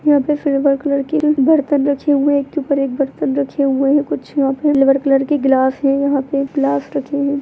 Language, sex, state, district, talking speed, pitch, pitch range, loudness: Hindi, female, Bihar, Begusarai, 245 wpm, 280 Hz, 275-290 Hz, -16 LUFS